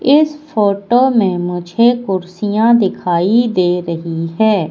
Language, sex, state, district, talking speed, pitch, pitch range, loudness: Hindi, female, Madhya Pradesh, Katni, 115 wpm, 205 Hz, 180-235 Hz, -14 LUFS